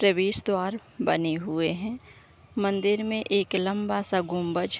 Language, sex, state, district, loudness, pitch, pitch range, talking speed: Hindi, female, Bihar, East Champaran, -27 LUFS, 195 Hz, 180-205 Hz, 140 wpm